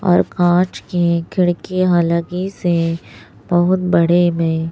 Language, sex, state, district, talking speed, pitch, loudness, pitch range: Hindi, male, Chhattisgarh, Raipur, 125 wpm, 175 Hz, -16 LUFS, 170-180 Hz